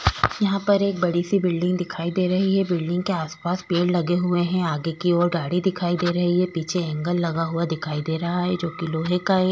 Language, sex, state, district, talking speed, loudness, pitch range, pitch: Hindi, female, Goa, North and South Goa, 240 wpm, -23 LUFS, 170-180 Hz, 175 Hz